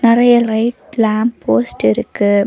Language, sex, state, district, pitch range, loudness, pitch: Tamil, female, Tamil Nadu, Nilgiris, 200-235 Hz, -14 LUFS, 225 Hz